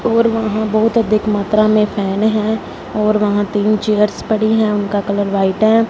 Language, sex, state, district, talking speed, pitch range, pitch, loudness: Hindi, female, Punjab, Fazilka, 185 wpm, 205-220 Hz, 215 Hz, -15 LUFS